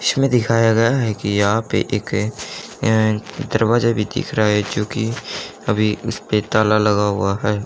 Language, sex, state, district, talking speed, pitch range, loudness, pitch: Hindi, male, Haryana, Charkhi Dadri, 180 wpm, 105-115 Hz, -18 LUFS, 110 Hz